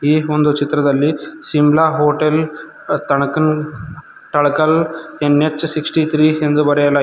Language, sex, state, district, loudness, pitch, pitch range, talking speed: Kannada, male, Karnataka, Koppal, -15 LUFS, 150 Hz, 145-155 Hz, 100 wpm